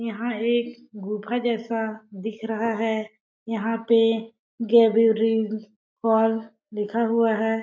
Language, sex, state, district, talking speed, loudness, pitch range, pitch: Hindi, female, Chhattisgarh, Balrampur, 110 wpm, -23 LUFS, 220-230 Hz, 225 Hz